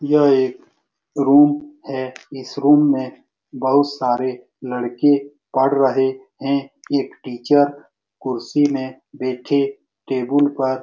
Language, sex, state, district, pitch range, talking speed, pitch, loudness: Hindi, male, Bihar, Saran, 130-145 Hz, 115 wpm, 135 Hz, -19 LUFS